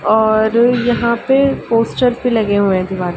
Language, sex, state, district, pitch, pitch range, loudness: Hindi, female, Uttar Pradesh, Ghazipur, 230 Hz, 210-245 Hz, -14 LUFS